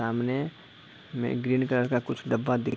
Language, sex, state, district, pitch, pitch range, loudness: Hindi, male, Chhattisgarh, Raigarh, 125 Hz, 120-130 Hz, -28 LUFS